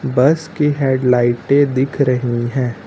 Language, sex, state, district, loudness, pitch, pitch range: Hindi, male, Uttar Pradesh, Lucknow, -16 LUFS, 130 Hz, 125-140 Hz